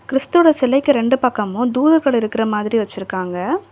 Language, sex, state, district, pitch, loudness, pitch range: Tamil, female, Tamil Nadu, Kanyakumari, 250 Hz, -17 LUFS, 210-275 Hz